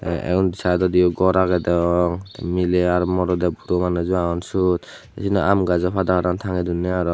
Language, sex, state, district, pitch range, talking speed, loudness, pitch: Chakma, male, Tripura, Unakoti, 90-95 Hz, 185 wpm, -20 LUFS, 90 Hz